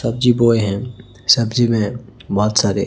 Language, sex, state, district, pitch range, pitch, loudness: Hindi, male, Chhattisgarh, Raipur, 105-120 Hz, 115 Hz, -17 LUFS